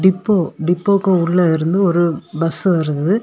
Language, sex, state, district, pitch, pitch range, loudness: Tamil, female, Tamil Nadu, Kanyakumari, 175 Hz, 165-190 Hz, -16 LUFS